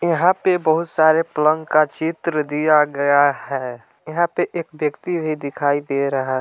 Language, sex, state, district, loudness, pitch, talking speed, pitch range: Hindi, male, Jharkhand, Palamu, -19 LUFS, 155 Hz, 170 wpm, 145-165 Hz